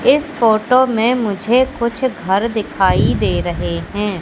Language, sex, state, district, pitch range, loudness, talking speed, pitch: Hindi, female, Madhya Pradesh, Katni, 190-250 Hz, -16 LUFS, 145 wpm, 220 Hz